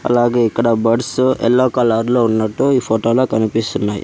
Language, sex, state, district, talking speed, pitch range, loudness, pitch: Telugu, male, Andhra Pradesh, Sri Satya Sai, 150 wpm, 110-125 Hz, -15 LUFS, 115 Hz